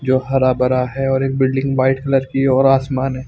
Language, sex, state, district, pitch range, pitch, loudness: Hindi, male, Punjab, Fazilka, 130-135 Hz, 135 Hz, -16 LUFS